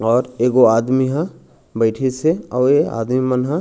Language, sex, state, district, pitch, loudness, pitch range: Chhattisgarhi, male, Chhattisgarh, Raigarh, 130 Hz, -17 LUFS, 120-135 Hz